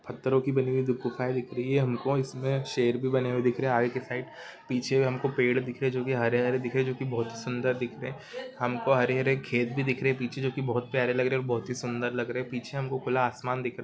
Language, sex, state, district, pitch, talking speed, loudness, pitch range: Hindi, male, Andhra Pradesh, Guntur, 125 Hz, 305 wpm, -29 LUFS, 125-130 Hz